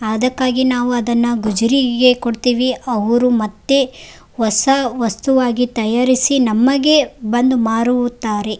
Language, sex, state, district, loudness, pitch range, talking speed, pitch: Kannada, female, Karnataka, Raichur, -15 LUFS, 230-255 Hz, 90 wpm, 245 Hz